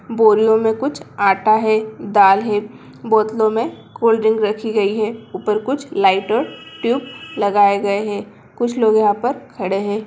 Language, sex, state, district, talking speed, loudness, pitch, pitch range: Hindi, female, Bihar, Begusarai, 160 wpm, -17 LUFS, 220 Hz, 205-225 Hz